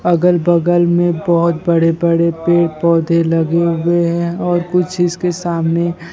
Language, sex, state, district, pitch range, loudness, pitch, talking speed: Hindi, male, Bihar, Kaimur, 170-175 Hz, -14 LUFS, 170 Hz, 145 wpm